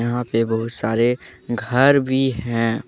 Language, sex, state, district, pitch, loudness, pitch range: Hindi, male, Jharkhand, Deoghar, 120 Hz, -20 LUFS, 115-125 Hz